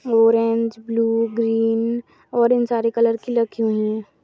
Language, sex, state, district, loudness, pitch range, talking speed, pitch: Hindi, female, Maharashtra, Solapur, -20 LUFS, 225-235 Hz, 155 wpm, 230 Hz